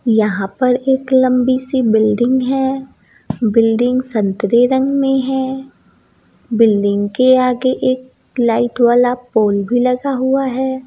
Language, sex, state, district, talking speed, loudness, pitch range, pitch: Hindi, female, Bihar, East Champaran, 125 wpm, -15 LUFS, 230-260 Hz, 250 Hz